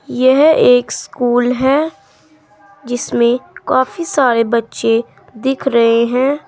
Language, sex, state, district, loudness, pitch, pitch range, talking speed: Hindi, female, Uttar Pradesh, Saharanpur, -14 LUFS, 250 Hz, 235-275 Hz, 100 wpm